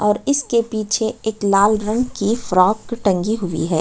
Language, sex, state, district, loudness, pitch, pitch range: Hindi, female, Chhattisgarh, Sukma, -18 LUFS, 215 Hz, 200-230 Hz